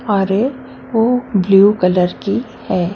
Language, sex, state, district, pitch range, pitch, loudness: Hindi, female, Maharashtra, Mumbai Suburban, 190-235 Hz, 200 Hz, -15 LUFS